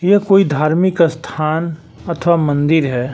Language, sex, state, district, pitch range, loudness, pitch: Hindi, male, Uttar Pradesh, Varanasi, 155-175 Hz, -15 LUFS, 165 Hz